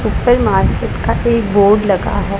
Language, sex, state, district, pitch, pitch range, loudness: Hindi, female, Punjab, Pathankot, 205 Hz, 200-235 Hz, -14 LUFS